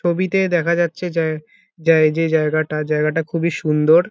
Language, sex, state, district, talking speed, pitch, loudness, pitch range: Bengali, male, West Bengal, Kolkata, 130 wpm, 165 Hz, -18 LUFS, 155-170 Hz